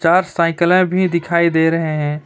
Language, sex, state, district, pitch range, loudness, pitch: Hindi, male, West Bengal, Alipurduar, 160-180 Hz, -15 LUFS, 170 Hz